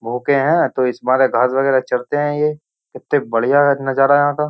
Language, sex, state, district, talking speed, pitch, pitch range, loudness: Hindi, male, Uttar Pradesh, Jyotiba Phule Nagar, 200 wpm, 135 Hz, 130-145 Hz, -16 LUFS